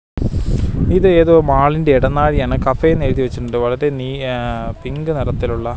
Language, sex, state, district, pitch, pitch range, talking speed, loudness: Malayalam, male, Kerala, Wayanad, 130 Hz, 120-150 Hz, 115 wpm, -16 LUFS